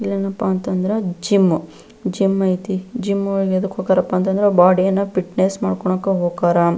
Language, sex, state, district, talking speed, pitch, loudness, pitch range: Kannada, female, Karnataka, Belgaum, 115 wpm, 190 Hz, -18 LUFS, 185-195 Hz